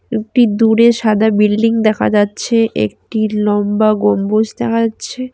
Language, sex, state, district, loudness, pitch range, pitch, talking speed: Bengali, female, West Bengal, Cooch Behar, -14 LUFS, 210-230 Hz, 220 Hz, 125 wpm